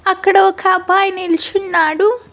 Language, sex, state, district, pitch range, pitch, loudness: Telugu, female, Andhra Pradesh, Annamaya, 365-390 Hz, 380 Hz, -14 LUFS